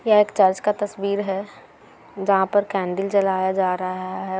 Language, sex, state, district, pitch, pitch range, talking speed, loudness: Hindi, female, Bihar, Gaya, 195 Hz, 190-205 Hz, 175 wpm, -21 LUFS